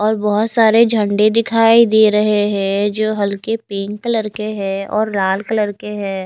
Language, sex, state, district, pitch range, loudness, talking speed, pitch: Hindi, female, Bihar, West Champaran, 200-220 Hz, -15 LUFS, 180 wpm, 210 Hz